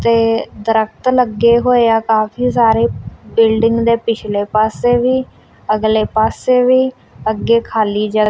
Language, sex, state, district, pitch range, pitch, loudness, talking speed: Punjabi, female, Punjab, Kapurthala, 220-240 Hz, 225 Hz, -14 LUFS, 125 wpm